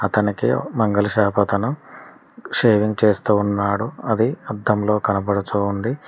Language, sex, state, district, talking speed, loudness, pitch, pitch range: Telugu, male, Telangana, Mahabubabad, 100 wpm, -20 LUFS, 105 Hz, 100-115 Hz